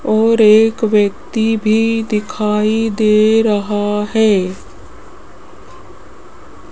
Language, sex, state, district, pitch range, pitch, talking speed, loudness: Hindi, female, Rajasthan, Jaipur, 210-225 Hz, 215 Hz, 70 wpm, -14 LUFS